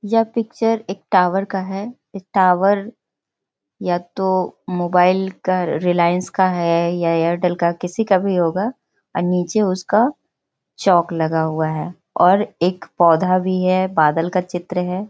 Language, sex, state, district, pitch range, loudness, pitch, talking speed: Hindi, female, Bihar, Jahanabad, 175-195 Hz, -18 LUFS, 185 Hz, 160 wpm